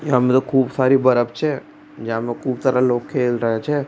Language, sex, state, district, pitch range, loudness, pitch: Rajasthani, male, Rajasthan, Churu, 120-135 Hz, -19 LUFS, 130 Hz